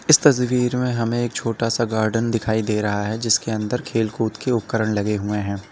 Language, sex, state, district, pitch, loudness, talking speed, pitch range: Hindi, male, Uttar Pradesh, Lalitpur, 115 Hz, -21 LUFS, 210 wpm, 105-120 Hz